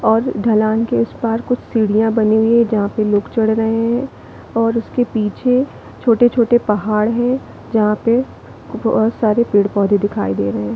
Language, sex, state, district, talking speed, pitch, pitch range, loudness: Hindi, female, Chhattisgarh, Bilaspur, 175 wpm, 225 Hz, 210-235 Hz, -16 LUFS